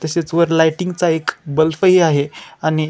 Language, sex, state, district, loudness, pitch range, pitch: Marathi, male, Maharashtra, Chandrapur, -16 LUFS, 155-170 Hz, 160 Hz